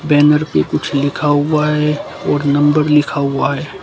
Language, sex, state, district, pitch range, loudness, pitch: Hindi, male, Haryana, Charkhi Dadri, 140-150 Hz, -15 LUFS, 145 Hz